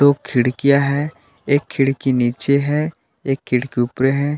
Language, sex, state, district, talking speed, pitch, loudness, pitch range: Hindi, male, Jharkhand, Palamu, 150 wpm, 140 Hz, -18 LUFS, 130-145 Hz